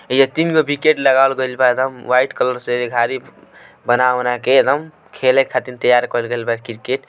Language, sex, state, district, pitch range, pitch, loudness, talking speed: Hindi, male, Bihar, Gopalganj, 125-135 Hz, 125 Hz, -16 LUFS, 170 wpm